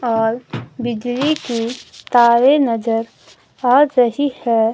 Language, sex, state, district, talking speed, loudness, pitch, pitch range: Hindi, female, Himachal Pradesh, Shimla, 100 wpm, -16 LUFS, 240 Hz, 230-260 Hz